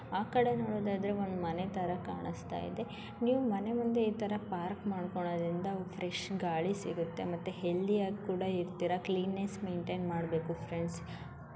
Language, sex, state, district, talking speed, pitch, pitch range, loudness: Kannada, female, Karnataka, Dharwad, 140 wpm, 185 Hz, 175-200 Hz, -36 LUFS